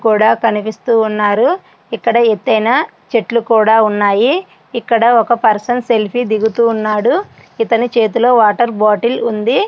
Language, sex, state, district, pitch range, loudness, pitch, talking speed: Telugu, female, Andhra Pradesh, Srikakulam, 220-235 Hz, -13 LUFS, 230 Hz, 105 wpm